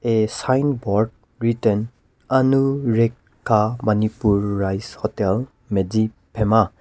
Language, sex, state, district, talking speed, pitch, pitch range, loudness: English, male, Nagaland, Kohima, 80 wpm, 110 Hz, 105-120 Hz, -21 LUFS